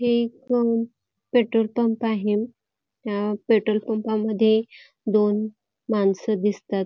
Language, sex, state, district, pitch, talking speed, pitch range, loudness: Marathi, female, Karnataka, Belgaum, 220 Hz, 105 wpm, 210-230 Hz, -23 LUFS